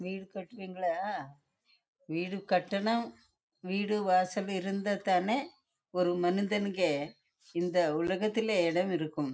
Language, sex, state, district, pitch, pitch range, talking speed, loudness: Tamil, female, Karnataka, Chamarajanagar, 185 Hz, 175-200 Hz, 50 wpm, -32 LUFS